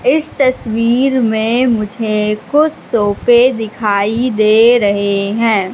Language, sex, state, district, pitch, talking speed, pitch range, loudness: Hindi, female, Madhya Pradesh, Katni, 225 Hz, 105 wpm, 210-245 Hz, -13 LUFS